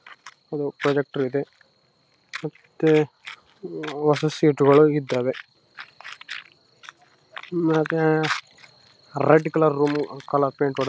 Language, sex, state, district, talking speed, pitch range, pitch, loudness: Kannada, male, Karnataka, Raichur, 85 wpm, 140-155 Hz, 150 Hz, -22 LUFS